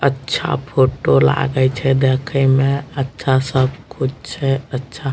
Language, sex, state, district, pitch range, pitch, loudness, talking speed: Maithili, male, Bihar, Madhepura, 130-135 Hz, 135 Hz, -17 LUFS, 130 wpm